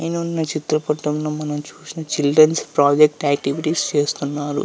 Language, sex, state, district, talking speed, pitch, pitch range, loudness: Telugu, male, Andhra Pradesh, Visakhapatnam, 90 wpm, 150 Hz, 145-155 Hz, -19 LUFS